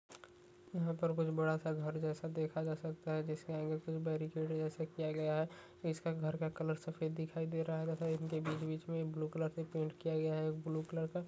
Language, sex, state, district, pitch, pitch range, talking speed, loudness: Hindi, male, Uttarakhand, Uttarkashi, 160 Hz, 155-160 Hz, 230 wpm, -40 LUFS